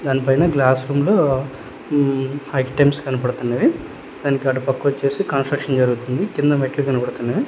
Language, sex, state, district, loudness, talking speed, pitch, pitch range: Telugu, male, Telangana, Hyderabad, -19 LUFS, 135 wpm, 135 Hz, 130-140 Hz